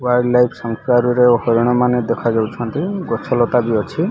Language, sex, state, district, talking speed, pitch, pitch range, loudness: Odia, male, Odisha, Malkangiri, 145 wpm, 125 Hz, 115-125 Hz, -16 LUFS